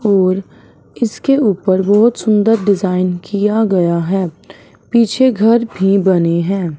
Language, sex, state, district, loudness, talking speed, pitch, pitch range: Hindi, male, Punjab, Fazilka, -14 LUFS, 125 wpm, 195 Hz, 185-220 Hz